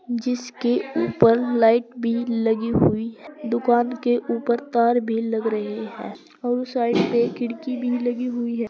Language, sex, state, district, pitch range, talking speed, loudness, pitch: Hindi, female, Uttar Pradesh, Saharanpur, 230-245 Hz, 150 wpm, -22 LUFS, 235 Hz